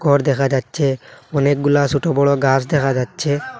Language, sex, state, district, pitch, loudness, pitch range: Bengali, male, Assam, Hailakandi, 140 Hz, -17 LUFS, 135-145 Hz